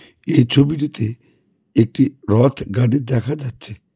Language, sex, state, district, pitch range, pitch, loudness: Bengali, male, West Bengal, Cooch Behar, 115-140 Hz, 125 Hz, -18 LUFS